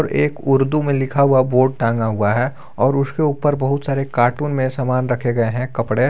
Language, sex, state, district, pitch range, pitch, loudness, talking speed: Hindi, male, Jharkhand, Garhwa, 125-140 Hz, 130 Hz, -18 LUFS, 205 wpm